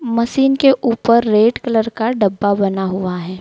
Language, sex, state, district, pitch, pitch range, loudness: Hindi, female, Madhya Pradesh, Dhar, 225 Hz, 200-235 Hz, -15 LUFS